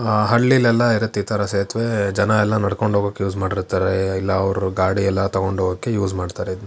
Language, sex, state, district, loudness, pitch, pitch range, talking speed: Kannada, male, Karnataka, Shimoga, -19 LUFS, 100 Hz, 95-105 Hz, 190 wpm